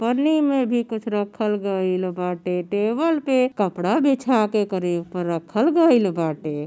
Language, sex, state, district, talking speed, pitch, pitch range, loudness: Bhojpuri, female, Uttar Pradesh, Gorakhpur, 155 wpm, 210 Hz, 180-255 Hz, -21 LUFS